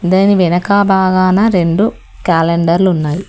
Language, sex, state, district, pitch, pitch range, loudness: Telugu, female, Telangana, Hyderabad, 185 Hz, 170-195 Hz, -12 LUFS